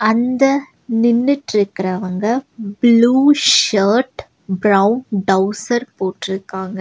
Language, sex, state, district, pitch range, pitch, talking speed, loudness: Tamil, female, Tamil Nadu, Nilgiris, 190-245 Hz, 215 Hz, 60 wpm, -16 LUFS